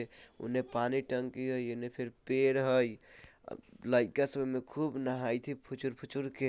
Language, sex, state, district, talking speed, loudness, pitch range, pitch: Bajjika, male, Bihar, Vaishali, 155 wpm, -34 LUFS, 125-135 Hz, 130 Hz